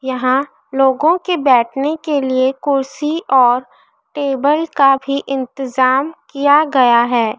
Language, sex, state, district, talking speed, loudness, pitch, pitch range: Hindi, female, Madhya Pradesh, Dhar, 120 wpm, -15 LUFS, 270 Hz, 260-295 Hz